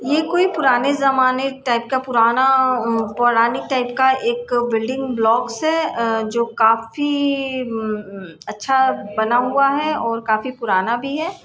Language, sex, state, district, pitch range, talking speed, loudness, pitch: Hindi, female, Bihar, Sitamarhi, 230-270 Hz, 145 wpm, -18 LUFS, 245 Hz